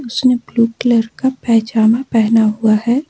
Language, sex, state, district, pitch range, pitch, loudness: Hindi, female, Jharkhand, Ranchi, 225-250 Hz, 230 Hz, -14 LUFS